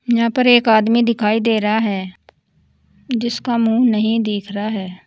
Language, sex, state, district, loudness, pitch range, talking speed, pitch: Hindi, female, Uttar Pradesh, Saharanpur, -16 LUFS, 210-235 Hz, 165 wpm, 225 Hz